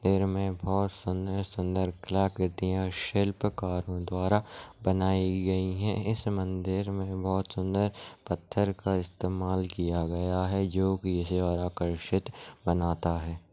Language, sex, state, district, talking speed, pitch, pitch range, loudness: Hindi, male, Chhattisgarh, Raigarh, 130 wpm, 95 Hz, 90-95 Hz, -30 LUFS